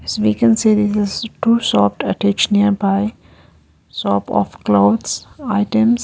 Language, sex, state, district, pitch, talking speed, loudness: English, female, Arunachal Pradesh, Lower Dibang Valley, 200 Hz, 140 wpm, -16 LUFS